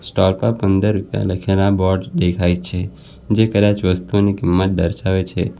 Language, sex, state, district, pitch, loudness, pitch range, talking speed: Gujarati, male, Gujarat, Valsad, 95 Hz, -17 LUFS, 90-100 Hz, 150 wpm